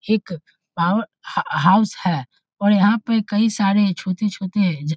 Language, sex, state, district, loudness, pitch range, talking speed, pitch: Hindi, male, Bihar, Muzaffarpur, -19 LUFS, 180-210 Hz, 145 wpm, 200 Hz